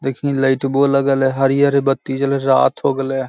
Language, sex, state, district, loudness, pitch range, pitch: Hindi, male, Bihar, Lakhisarai, -16 LUFS, 135-140 Hz, 135 Hz